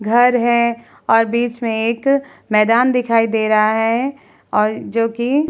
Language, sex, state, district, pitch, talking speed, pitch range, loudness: Hindi, female, Uttar Pradesh, Hamirpur, 230 Hz, 155 wpm, 225-245 Hz, -16 LUFS